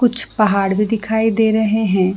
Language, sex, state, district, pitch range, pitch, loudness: Hindi, female, Jharkhand, Jamtara, 200-220 Hz, 220 Hz, -16 LUFS